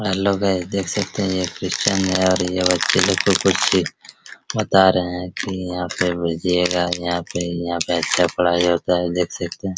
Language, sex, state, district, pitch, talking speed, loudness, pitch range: Hindi, male, Bihar, Araria, 90 Hz, 200 wpm, -19 LUFS, 90-95 Hz